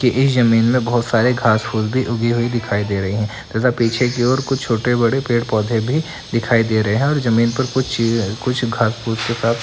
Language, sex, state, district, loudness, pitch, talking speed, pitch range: Hindi, female, Bihar, Madhepura, -18 LUFS, 115 Hz, 235 wpm, 115-125 Hz